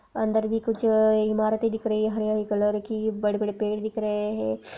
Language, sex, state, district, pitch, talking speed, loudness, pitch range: Hindi, female, Rajasthan, Nagaur, 215 Hz, 215 wpm, -25 LUFS, 210-220 Hz